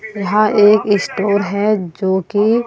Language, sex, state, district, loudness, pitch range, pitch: Hindi, male, Delhi, New Delhi, -15 LUFS, 200-215 Hz, 205 Hz